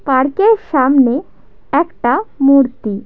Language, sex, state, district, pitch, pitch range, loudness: Bengali, female, West Bengal, Paschim Medinipur, 275 Hz, 260-315 Hz, -13 LUFS